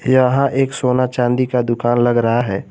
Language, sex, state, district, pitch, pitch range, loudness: Hindi, male, Jharkhand, Garhwa, 125 Hz, 120-130 Hz, -16 LUFS